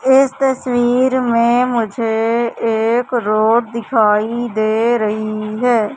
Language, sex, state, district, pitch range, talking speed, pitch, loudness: Hindi, male, Madhya Pradesh, Katni, 220-245 Hz, 100 wpm, 235 Hz, -16 LUFS